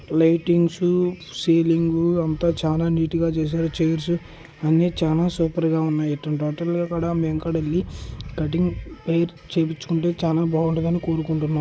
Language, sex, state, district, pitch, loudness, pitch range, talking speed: Telugu, male, Andhra Pradesh, Krishna, 165 Hz, -22 LUFS, 160-170 Hz, 135 wpm